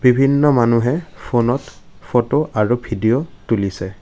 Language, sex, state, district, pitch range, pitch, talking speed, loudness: Assamese, male, Assam, Kamrup Metropolitan, 110-140 Hz, 120 Hz, 105 wpm, -18 LUFS